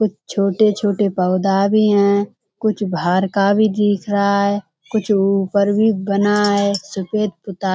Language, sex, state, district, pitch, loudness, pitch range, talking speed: Hindi, female, Uttar Pradesh, Budaun, 200 Hz, -17 LUFS, 195-210 Hz, 145 wpm